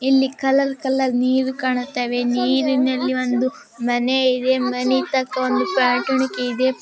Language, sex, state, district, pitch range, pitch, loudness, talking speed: Kannada, female, Karnataka, Raichur, 250-265 Hz, 260 Hz, -20 LUFS, 125 wpm